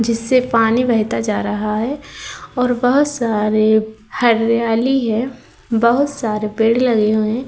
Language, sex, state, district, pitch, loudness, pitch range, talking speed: Hindi, female, Uttar Pradesh, Muzaffarnagar, 230 Hz, -16 LUFS, 220-250 Hz, 135 wpm